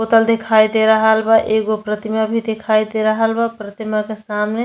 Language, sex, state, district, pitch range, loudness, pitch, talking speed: Bhojpuri, female, Uttar Pradesh, Deoria, 215-225 Hz, -16 LUFS, 220 Hz, 205 wpm